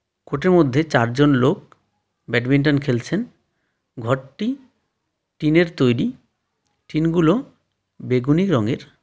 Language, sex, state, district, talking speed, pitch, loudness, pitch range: Bengali, male, West Bengal, Darjeeling, 80 wpm, 145 Hz, -20 LUFS, 125-165 Hz